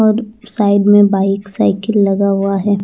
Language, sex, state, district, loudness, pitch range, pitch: Hindi, female, Chandigarh, Chandigarh, -13 LUFS, 200-215 Hz, 200 Hz